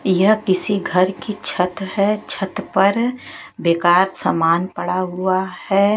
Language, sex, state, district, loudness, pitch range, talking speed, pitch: Hindi, female, Chhattisgarh, Raipur, -18 LUFS, 180-205 Hz, 130 wpm, 190 Hz